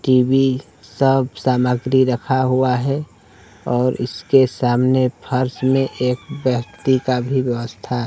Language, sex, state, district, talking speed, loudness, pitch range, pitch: Hindi, male, Bihar, Kaimur, 120 wpm, -18 LUFS, 125-130 Hz, 130 Hz